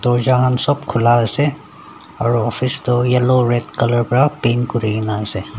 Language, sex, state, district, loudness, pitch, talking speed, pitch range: Nagamese, male, Nagaland, Dimapur, -16 LUFS, 120 Hz, 160 wpm, 115-130 Hz